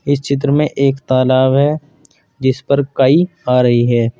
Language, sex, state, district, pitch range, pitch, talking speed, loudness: Hindi, male, Uttar Pradesh, Saharanpur, 130-145 Hz, 140 Hz, 170 wpm, -14 LUFS